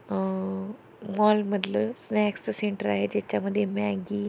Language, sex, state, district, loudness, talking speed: Marathi, female, Maharashtra, Pune, -27 LUFS, 155 wpm